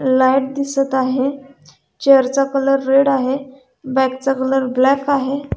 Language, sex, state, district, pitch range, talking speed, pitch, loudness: Marathi, female, Maharashtra, Dhule, 260-275 Hz, 140 wpm, 270 Hz, -16 LUFS